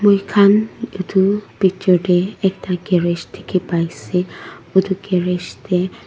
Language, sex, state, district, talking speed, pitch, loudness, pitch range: Nagamese, female, Nagaland, Dimapur, 120 wpm, 190 Hz, -18 LUFS, 180-195 Hz